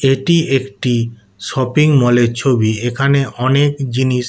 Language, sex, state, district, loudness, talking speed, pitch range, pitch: Bengali, male, West Bengal, Kolkata, -15 LUFS, 110 wpm, 120-140 Hz, 130 Hz